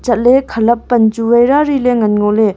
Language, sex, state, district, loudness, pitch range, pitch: Wancho, female, Arunachal Pradesh, Longding, -12 LUFS, 220-250 Hz, 235 Hz